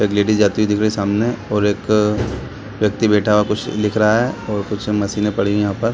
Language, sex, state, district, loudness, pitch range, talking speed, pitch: Hindi, male, Bihar, Saran, -17 LUFS, 105-110 Hz, 250 wpm, 105 Hz